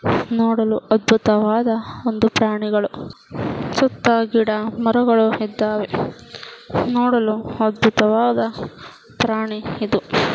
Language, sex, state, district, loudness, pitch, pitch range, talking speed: Kannada, female, Karnataka, Mysore, -19 LUFS, 225 Hz, 215-230 Hz, 75 wpm